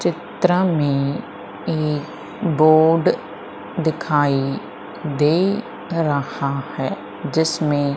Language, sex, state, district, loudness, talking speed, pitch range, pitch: Hindi, female, Madhya Pradesh, Umaria, -20 LUFS, 70 wpm, 140-165 Hz, 150 Hz